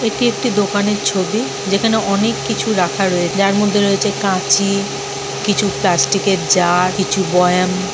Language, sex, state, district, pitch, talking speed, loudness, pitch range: Bengali, female, West Bengal, Jhargram, 200 Hz, 135 wpm, -15 LUFS, 190-205 Hz